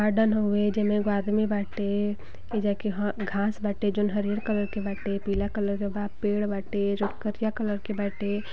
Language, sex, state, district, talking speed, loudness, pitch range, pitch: Bhojpuri, female, Uttar Pradesh, Gorakhpur, 190 wpm, -28 LUFS, 200-210 Hz, 205 Hz